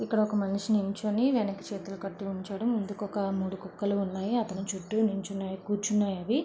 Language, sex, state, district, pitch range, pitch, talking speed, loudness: Telugu, female, Andhra Pradesh, Visakhapatnam, 195-210 Hz, 200 Hz, 165 wpm, -30 LUFS